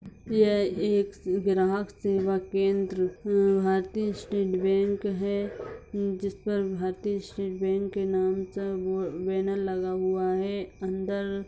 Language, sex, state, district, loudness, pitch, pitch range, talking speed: Hindi, female, Bihar, Madhepura, -28 LUFS, 195 Hz, 190-200 Hz, 125 wpm